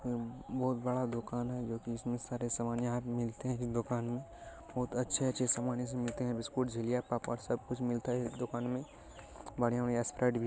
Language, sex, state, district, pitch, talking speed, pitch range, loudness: Hindi, male, Bihar, Jamui, 120 Hz, 170 wpm, 120-125 Hz, -36 LUFS